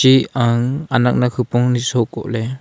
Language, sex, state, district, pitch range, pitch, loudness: Wancho, male, Arunachal Pradesh, Longding, 120-130 Hz, 125 Hz, -17 LUFS